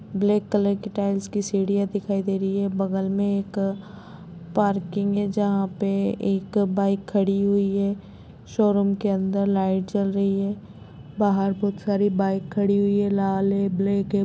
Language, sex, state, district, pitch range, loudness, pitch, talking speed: Hindi, female, Chhattisgarh, Rajnandgaon, 195-200 Hz, -23 LUFS, 200 Hz, 170 wpm